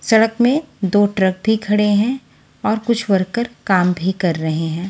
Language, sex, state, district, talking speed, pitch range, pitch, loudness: Hindi, female, Haryana, Charkhi Dadri, 185 wpm, 185-225 Hz, 205 Hz, -17 LUFS